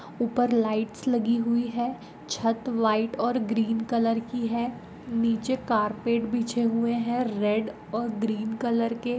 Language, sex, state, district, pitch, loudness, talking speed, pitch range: Hindi, female, Goa, North and South Goa, 230 Hz, -27 LUFS, 145 wpm, 225-240 Hz